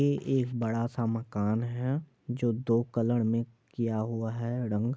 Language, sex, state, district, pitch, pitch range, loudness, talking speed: Hindi, male, Bihar, Madhepura, 115 Hz, 115-125 Hz, -31 LUFS, 170 wpm